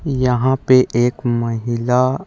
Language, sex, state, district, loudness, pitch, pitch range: Chhattisgarhi, male, Chhattisgarh, Raigarh, -17 LUFS, 125 Hz, 120-130 Hz